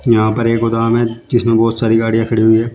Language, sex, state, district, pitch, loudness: Hindi, male, Uttar Pradesh, Shamli, 115 Hz, -14 LUFS